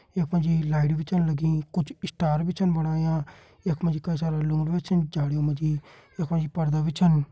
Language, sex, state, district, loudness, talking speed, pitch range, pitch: Hindi, male, Uttarakhand, Tehri Garhwal, -26 LUFS, 220 wpm, 155-170 Hz, 160 Hz